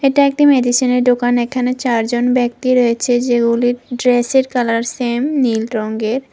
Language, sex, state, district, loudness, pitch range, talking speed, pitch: Bengali, female, Tripura, West Tripura, -15 LUFS, 240-255 Hz, 135 wpm, 245 Hz